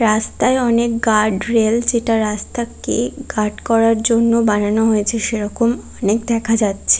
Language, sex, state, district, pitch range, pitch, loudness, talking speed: Bengali, female, West Bengal, Kolkata, 215-235 Hz, 225 Hz, -17 LUFS, 130 wpm